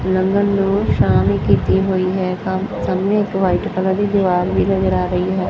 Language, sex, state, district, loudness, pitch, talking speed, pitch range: Punjabi, female, Punjab, Fazilka, -17 LUFS, 185 Hz, 205 wpm, 180-195 Hz